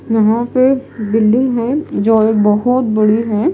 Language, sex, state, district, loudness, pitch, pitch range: Hindi, female, Himachal Pradesh, Shimla, -13 LUFS, 225 Hz, 215-255 Hz